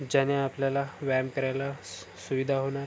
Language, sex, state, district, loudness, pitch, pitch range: Marathi, male, Maharashtra, Sindhudurg, -29 LUFS, 135 Hz, 130-140 Hz